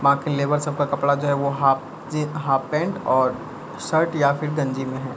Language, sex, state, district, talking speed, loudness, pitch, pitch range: Hindi, male, Bihar, Begusarai, 210 wpm, -22 LUFS, 140 Hz, 135-150 Hz